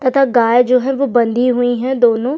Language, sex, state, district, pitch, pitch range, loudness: Hindi, female, Chhattisgarh, Sukma, 250 Hz, 240-265 Hz, -14 LUFS